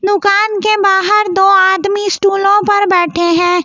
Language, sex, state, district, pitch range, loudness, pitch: Hindi, female, Delhi, New Delhi, 380-405 Hz, -11 LUFS, 395 Hz